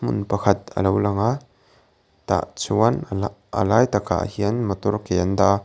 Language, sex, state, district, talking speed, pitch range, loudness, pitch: Mizo, male, Mizoram, Aizawl, 200 wpm, 95-105 Hz, -22 LUFS, 100 Hz